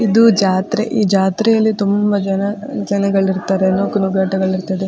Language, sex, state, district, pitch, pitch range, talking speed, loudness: Kannada, female, Karnataka, Dakshina Kannada, 200 Hz, 190-210 Hz, 110 wpm, -15 LUFS